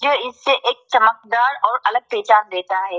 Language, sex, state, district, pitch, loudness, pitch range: Hindi, female, Arunachal Pradesh, Lower Dibang Valley, 245 Hz, -17 LUFS, 215-275 Hz